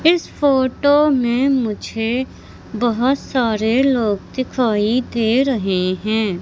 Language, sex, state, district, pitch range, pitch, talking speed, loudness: Hindi, female, Madhya Pradesh, Katni, 220-265 Hz, 245 Hz, 105 wpm, -18 LUFS